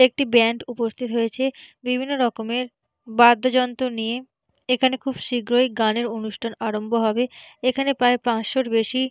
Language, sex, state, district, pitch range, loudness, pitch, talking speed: Bengali, female, West Bengal, Purulia, 230-255 Hz, -22 LUFS, 245 Hz, 125 wpm